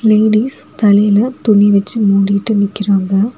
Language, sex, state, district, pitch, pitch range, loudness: Tamil, female, Tamil Nadu, Kanyakumari, 205 Hz, 200-220 Hz, -12 LUFS